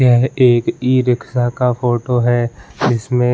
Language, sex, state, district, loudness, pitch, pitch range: Hindi, male, Uttarakhand, Uttarkashi, -16 LUFS, 125 Hz, 120-125 Hz